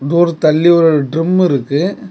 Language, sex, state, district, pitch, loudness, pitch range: Tamil, male, Tamil Nadu, Kanyakumari, 165 Hz, -12 LUFS, 150-175 Hz